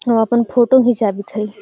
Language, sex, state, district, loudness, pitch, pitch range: Magahi, female, Bihar, Gaya, -15 LUFS, 230 Hz, 210-240 Hz